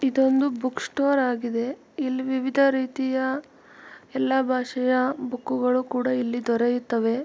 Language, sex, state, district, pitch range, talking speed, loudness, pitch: Kannada, female, Karnataka, Mysore, 250-265 Hz, 110 wpm, -24 LUFS, 255 Hz